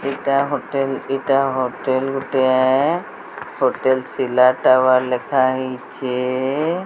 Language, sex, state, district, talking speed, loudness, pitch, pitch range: Odia, female, Odisha, Sambalpur, 80 wpm, -18 LUFS, 130 Hz, 130-135 Hz